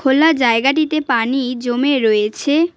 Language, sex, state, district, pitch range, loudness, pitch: Bengali, female, West Bengal, Cooch Behar, 240-305 Hz, -16 LUFS, 265 Hz